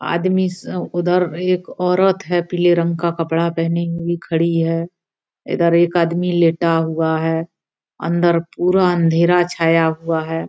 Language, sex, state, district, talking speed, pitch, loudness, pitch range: Maithili, female, Bihar, Araria, 150 wpm, 170 Hz, -17 LUFS, 165-175 Hz